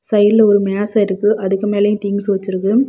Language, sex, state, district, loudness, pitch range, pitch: Tamil, female, Tamil Nadu, Kanyakumari, -15 LUFS, 200-210 Hz, 205 Hz